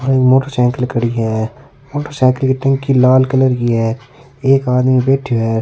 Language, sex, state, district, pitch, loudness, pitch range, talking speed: Rajasthani, male, Rajasthan, Nagaur, 130 Hz, -14 LUFS, 120-135 Hz, 160 wpm